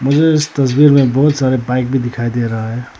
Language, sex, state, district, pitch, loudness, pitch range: Hindi, male, Arunachal Pradesh, Lower Dibang Valley, 130 Hz, -14 LUFS, 120-140 Hz